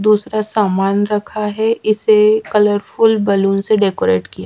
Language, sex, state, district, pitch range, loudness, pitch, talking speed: Hindi, female, Madhya Pradesh, Dhar, 200-215 Hz, -15 LUFS, 210 Hz, 135 wpm